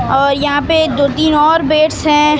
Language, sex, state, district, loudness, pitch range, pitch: Hindi, male, Maharashtra, Mumbai Suburban, -12 LUFS, 285-310 Hz, 300 Hz